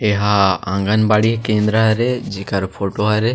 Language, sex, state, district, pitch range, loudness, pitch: Chhattisgarhi, male, Chhattisgarh, Sarguja, 100-110 Hz, -17 LUFS, 105 Hz